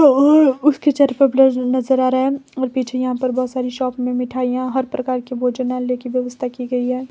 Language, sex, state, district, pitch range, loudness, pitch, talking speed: Hindi, female, Himachal Pradesh, Shimla, 250-265 Hz, -18 LUFS, 255 Hz, 220 wpm